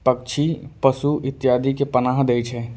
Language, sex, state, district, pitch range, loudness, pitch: Angika, male, Bihar, Bhagalpur, 125-140 Hz, -21 LUFS, 135 Hz